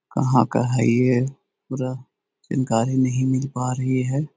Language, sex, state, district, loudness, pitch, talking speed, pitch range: Magahi, male, Bihar, Jahanabad, -22 LUFS, 130 Hz, 150 wpm, 125-130 Hz